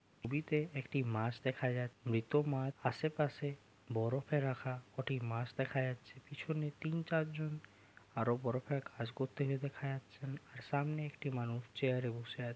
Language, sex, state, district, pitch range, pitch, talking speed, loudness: Bengali, male, West Bengal, Jalpaiguri, 120-145 Hz, 130 Hz, 155 wpm, -39 LUFS